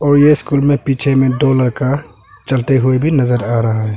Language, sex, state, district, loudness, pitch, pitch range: Hindi, male, Arunachal Pradesh, Longding, -14 LUFS, 135 Hz, 125-140 Hz